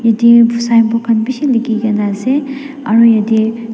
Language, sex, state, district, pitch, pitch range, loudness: Nagamese, female, Nagaland, Dimapur, 230 Hz, 225-235 Hz, -12 LUFS